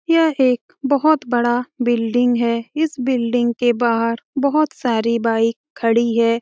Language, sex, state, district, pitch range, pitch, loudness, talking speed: Hindi, female, Bihar, Jamui, 230-280 Hz, 240 Hz, -18 LUFS, 140 wpm